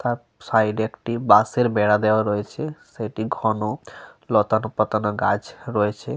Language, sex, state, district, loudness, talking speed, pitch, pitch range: Bengali, male, Jharkhand, Sahebganj, -22 LUFS, 135 wpm, 110 Hz, 105-115 Hz